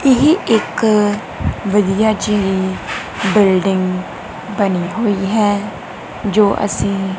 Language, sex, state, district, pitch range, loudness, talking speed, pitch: Punjabi, female, Punjab, Kapurthala, 190-215 Hz, -16 LUFS, 85 wpm, 205 Hz